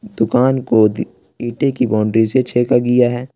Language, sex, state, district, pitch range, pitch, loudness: Hindi, male, Jharkhand, Ranchi, 115-130 Hz, 125 Hz, -15 LUFS